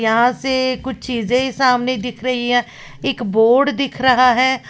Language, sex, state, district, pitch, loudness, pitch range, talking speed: Hindi, female, Uttar Pradesh, Lalitpur, 255 Hz, -17 LUFS, 240-260 Hz, 165 wpm